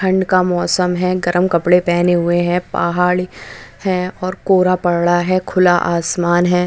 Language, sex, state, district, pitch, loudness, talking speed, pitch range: Hindi, female, West Bengal, Dakshin Dinajpur, 180 Hz, -15 LUFS, 160 wpm, 175-185 Hz